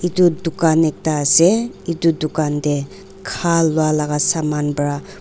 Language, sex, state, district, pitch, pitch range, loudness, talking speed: Nagamese, female, Nagaland, Dimapur, 160 Hz, 150-170 Hz, -17 LUFS, 140 wpm